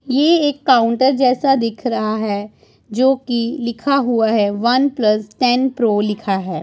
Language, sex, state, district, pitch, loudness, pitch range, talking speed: Hindi, male, Punjab, Pathankot, 235 Hz, -16 LUFS, 215-265 Hz, 155 wpm